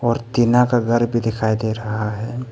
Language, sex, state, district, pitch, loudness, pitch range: Hindi, male, Arunachal Pradesh, Papum Pare, 115 Hz, -19 LUFS, 110-120 Hz